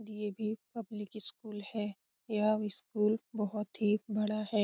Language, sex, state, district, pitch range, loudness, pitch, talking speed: Hindi, female, Bihar, Lakhisarai, 210-215 Hz, -35 LUFS, 210 Hz, 130 wpm